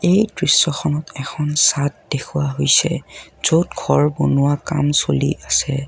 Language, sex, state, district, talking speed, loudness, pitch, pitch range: Assamese, male, Assam, Kamrup Metropolitan, 120 wpm, -17 LUFS, 150 Hz, 140-155 Hz